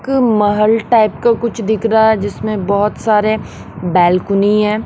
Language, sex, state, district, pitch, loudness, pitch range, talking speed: Hindi, female, Haryana, Rohtak, 215 Hz, -14 LUFS, 205-220 Hz, 160 wpm